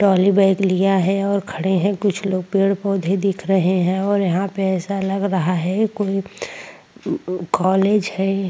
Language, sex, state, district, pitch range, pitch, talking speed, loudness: Hindi, female, Chhattisgarh, Korba, 185-200 Hz, 195 Hz, 155 wpm, -19 LUFS